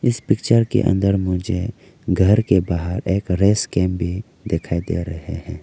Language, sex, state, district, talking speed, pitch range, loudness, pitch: Hindi, male, Arunachal Pradesh, Lower Dibang Valley, 170 wpm, 90-110 Hz, -20 LUFS, 95 Hz